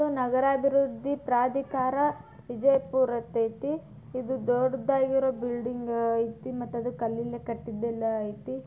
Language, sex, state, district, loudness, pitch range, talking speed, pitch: Kannada, female, Karnataka, Bijapur, -28 LUFS, 235-270 Hz, 95 wpm, 245 Hz